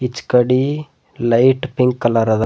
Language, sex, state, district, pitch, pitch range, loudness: Kannada, male, Karnataka, Bidar, 125 Hz, 120-130 Hz, -16 LUFS